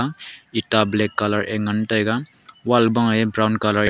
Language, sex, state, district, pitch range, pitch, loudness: Wancho, male, Arunachal Pradesh, Longding, 105-120 Hz, 110 Hz, -20 LUFS